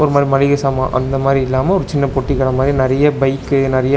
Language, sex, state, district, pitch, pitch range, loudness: Tamil, male, Tamil Nadu, Chennai, 135 Hz, 130-140 Hz, -15 LUFS